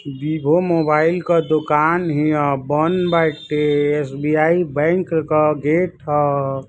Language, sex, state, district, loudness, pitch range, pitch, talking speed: Bhojpuri, male, Uttar Pradesh, Ghazipur, -18 LUFS, 145-165 Hz, 155 Hz, 110 wpm